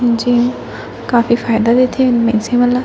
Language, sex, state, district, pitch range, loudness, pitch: Chhattisgarhi, female, Chhattisgarh, Raigarh, 235-245 Hz, -14 LUFS, 240 Hz